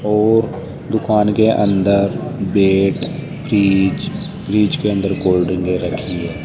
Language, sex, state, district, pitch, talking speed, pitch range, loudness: Hindi, male, Rajasthan, Jaipur, 100 Hz, 110 wpm, 95-105 Hz, -16 LUFS